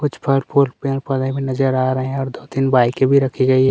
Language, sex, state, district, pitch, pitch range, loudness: Hindi, male, Chhattisgarh, Kabirdham, 135 Hz, 130-135 Hz, -18 LUFS